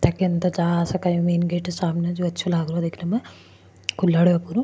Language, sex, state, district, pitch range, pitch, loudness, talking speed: Marwari, female, Rajasthan, Churu, 170-180 Hz, 175 Hz, -22 LUFS, 235 wpm